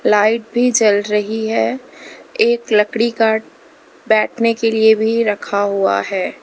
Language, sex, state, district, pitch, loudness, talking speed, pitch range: Hindi, female, Uttar Pradesh, Lalitpur, 220 Hz, -16 LUFS, 140 wpm, 210-230 Hz